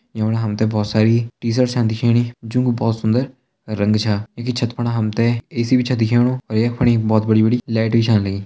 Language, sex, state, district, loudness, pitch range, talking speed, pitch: Hindi, male, Uttarakhand, Tehri Garhwal, -18 LUFS, 110-120 Hz, 235 wpm, 115 Hz